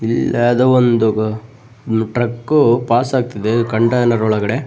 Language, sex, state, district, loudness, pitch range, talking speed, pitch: Kannada, male, Karnataka, Bellary, -15 LUFS, 110-125 Hz, 105 wpm, 120 Hz